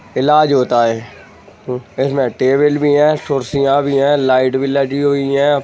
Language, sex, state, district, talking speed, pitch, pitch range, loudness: Hindi, male, Jharkhand, Sahebganj, 170 wpm, 140 Hz, 130-145 Hz, -14 LUFS